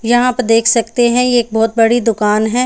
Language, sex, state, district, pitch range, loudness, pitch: Hindi, female, Haryana, Charkhi Dadri, 225-245 Hz, -13 LUFS, 230 Hz